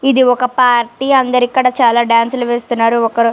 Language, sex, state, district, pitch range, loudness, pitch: Telugu, female, Telangana, Karimnagar, 235-255 Hz, -13 LUFS, 245 Hz